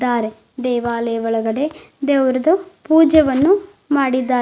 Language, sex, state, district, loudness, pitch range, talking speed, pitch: Kannada, female, Karnataka, Bidar, -17 LUFS, 240-315 Hz, 80 wpm, 265 Hz